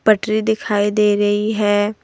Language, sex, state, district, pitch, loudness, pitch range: Hindi, female, Jharkhand, Deoghar, 210 Hz, -17 LUFS, 205-215 Hz